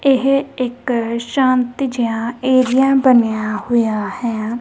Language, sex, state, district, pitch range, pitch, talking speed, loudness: Punjabi, female, Punjab, Kapurthala, 230-260 Hz, 245 Hz, 105 wpm, -16 LUFS